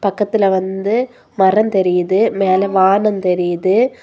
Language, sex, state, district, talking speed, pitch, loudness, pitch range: Tamil, female, Tamil Nadu, Kanyakumari, 105 wpm, 195 Hz, -15 LUFS, 190-210 Hz